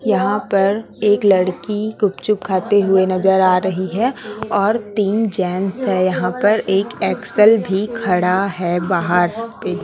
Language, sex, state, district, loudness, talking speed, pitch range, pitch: Hindi, female, Chhattisgarh, Raipur, -17 LUFS, 145 wpm, 185-210 Hz, 195 Hz